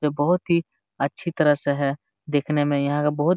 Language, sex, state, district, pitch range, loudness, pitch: Hindi, male, Jharkhand, Jamtara, 145-170 Hz, -23 LUFS, 150 Hz